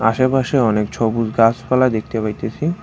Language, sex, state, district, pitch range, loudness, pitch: Bengali, male, West Bengal, Cooch Behar, 110-130 Hz, -17 LUFS, 115 Hz